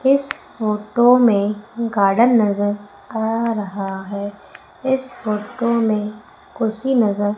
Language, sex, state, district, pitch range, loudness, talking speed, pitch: Hindi, female, Madhya Pradesh, Umaria, 205-240 Hz, -19 LUFS, 115 wpm, 220 Hz